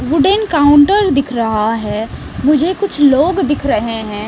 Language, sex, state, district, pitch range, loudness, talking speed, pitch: Hindi, female, Bihar, West Champaran, 225-320 Hz, -13 LUFS, 155 wpm, 285 Hz